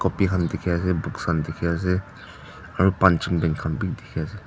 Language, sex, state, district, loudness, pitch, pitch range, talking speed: Nagamese, female, Nagaland, Dimapur, -23 LUFS, 90 Hz, 80-95 Hz, 135 wpm